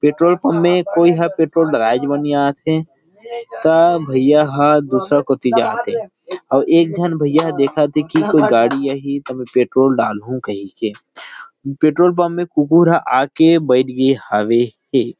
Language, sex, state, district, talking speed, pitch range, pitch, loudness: Chhattisgarhi, male, Chhattisgarh, Rajnandgaon, 160 wpm, 130-170 Hz, 145 Hz, -15 LUFS